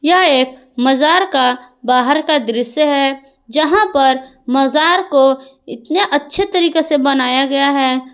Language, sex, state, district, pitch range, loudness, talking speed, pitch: Hindi, female, Jharkhand, Ranchi, 260-310 Hz, -13 LUFS, 140 wpm, 275 Hz